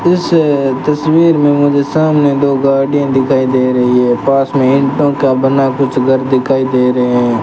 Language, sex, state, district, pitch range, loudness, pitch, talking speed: Hindi, male, Rajasthan, Bikaner, 130-145 Hz, -11 LUFS, 135 Hz, 175 wpm